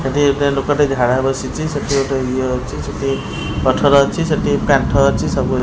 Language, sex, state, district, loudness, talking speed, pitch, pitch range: Odia, male, Odisha, Khordha, -16 LUFS, 170 wpm, 135 Hz, 130-140 Hz